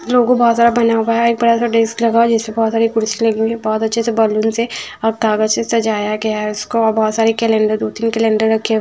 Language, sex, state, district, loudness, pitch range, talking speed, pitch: Hindi, female, Punjab, Fazilka, -15 LUFS, 220-230 Hz, 290 wpm, 225 Hz